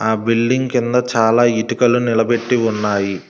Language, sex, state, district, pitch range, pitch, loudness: Telugu, male, Telangana, Hyderabad, 110-120 Hz, 115 Hz, -16 LUFS